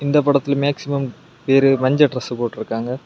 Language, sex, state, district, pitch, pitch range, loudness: Tamil, male, Tamil Nadu, Kanyakumari, 135 Hz, 125-140 Hz, -18 LUFS